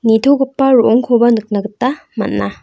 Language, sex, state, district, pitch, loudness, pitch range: Garo, female, Meghalaya, North Garo Hills, 235 Hz, -13 LUFS, 215-260 Hz